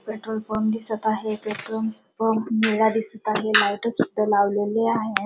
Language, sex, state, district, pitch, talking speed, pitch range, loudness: Marathi, female, Maharashtra, Dhule, 220 Hz, 150 wpm, 215-220 Hz, -23 LUFS